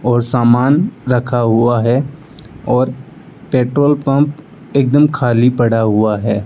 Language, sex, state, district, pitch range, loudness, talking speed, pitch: Hindi, male, Rajasthan, Bikaner, 120-145 Hz, -14 LUFS, 120 wpm, 125 Hz